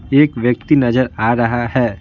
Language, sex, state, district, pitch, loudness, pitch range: Hindi, male, Bihar, Patna, 120 Hz, -15 LUFS, 115-130 Hz